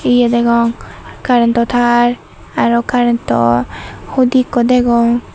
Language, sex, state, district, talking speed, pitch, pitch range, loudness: Chakma, female, Tripura, Dhalai, 100 wpm, 235 Hz, 235-245 Hz, -13 LUFS